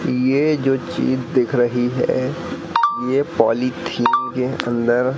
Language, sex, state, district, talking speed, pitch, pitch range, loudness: Hindi, male, Madhya Pradesh, Katni, 115 wpm, 130 Hz, 120-140 Hz, -19 LUFS